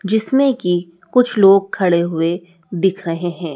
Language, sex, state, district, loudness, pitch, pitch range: Hindi, male, Madhya Pradesh, Dhar, -16 LUFS, 180 Hz, 170-200 Hz